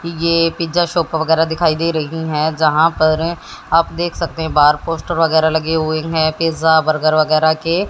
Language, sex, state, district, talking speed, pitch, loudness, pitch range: Hindi, female, Haryana, Jhajjar, 180 wpm, 160 Hz, -15 LUFS, 155-165 Hz